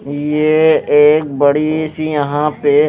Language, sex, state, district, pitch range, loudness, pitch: Hindi, male, Haryana, Rohtak, 145-155 Hz, -13 LUFS, 150 Hz